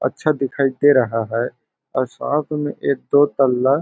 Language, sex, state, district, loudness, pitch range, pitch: Hindi, male, Chhattisgarh, Balrampur, -19 LUFS, 130-145 Hz, 135 Hz